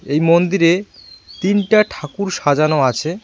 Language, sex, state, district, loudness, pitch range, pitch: Bengali, male, West Bengal, Cooch Behar, -16 LUFS, 155-200 Hz, 170 Hz